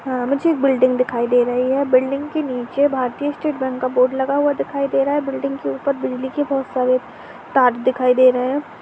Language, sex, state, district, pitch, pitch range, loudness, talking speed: Hindi, female, Uttar Pradesh, Hamirpur, 265 Hz, 255-280 Hz, -19 LUFS, 225 wpm